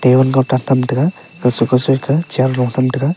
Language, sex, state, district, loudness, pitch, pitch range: Wancho, male, Arunachal Pradesh, Longding, -15 LUFS, 130 Hz, 125-140 Hz